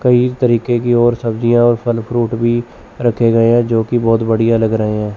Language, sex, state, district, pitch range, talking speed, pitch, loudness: Hindi, male, Chandigarh, Chandigarh, 115-120 Hz, 220 wpm, 120 Hz, -14 LUFS